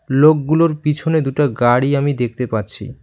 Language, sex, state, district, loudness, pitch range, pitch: Bengali, male, West Bengal, Cooch Behar, -16 LUFS, 120-150 Hz, 140 Hz